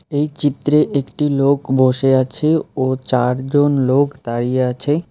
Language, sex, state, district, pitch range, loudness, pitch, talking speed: Bengali, male, West Bengal, Alipurduar, 130-145 Hz, -17 LUFS, 135 Hz, 130 wpm